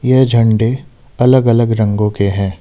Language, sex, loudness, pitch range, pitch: Hindi, male, -13 LUFS, 105-125 Hz, 115 Hz